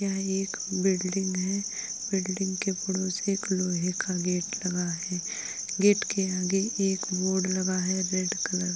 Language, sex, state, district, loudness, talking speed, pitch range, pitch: Hindi, female, Uttar Pradesh, Etah, -28 LUFS, 160 wpm, 185-195 Hz, 190 Hz